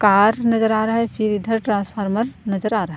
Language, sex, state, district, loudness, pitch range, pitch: Hindi, female, Chhattisgarh, Korba, -19 LUFS, 205-225 Hz, 215 Hz